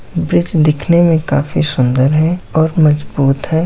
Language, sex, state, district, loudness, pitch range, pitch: Hindi, male, Bihar, Samastipur, -13 LUFS, 145-170 Hz, 155 Hz